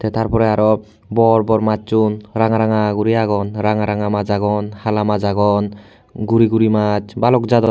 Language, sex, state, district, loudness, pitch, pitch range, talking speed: Chakma, male, Tripura, Unakoti, -16 LUFS, 110 Hz, 105-110 Hz, 180 wpm